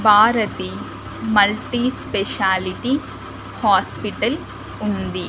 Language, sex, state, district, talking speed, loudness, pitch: Telugu, female, Andhra Pradesh, Annamaya, 55 wpm, -20 LUFS, 205 Hz